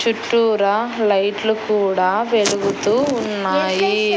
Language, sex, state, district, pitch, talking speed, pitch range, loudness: Telugu, female, Andhra Pradesh, Annamaya, 210 Hz, 70 wpm, 200-225 Hz, -18 LUFS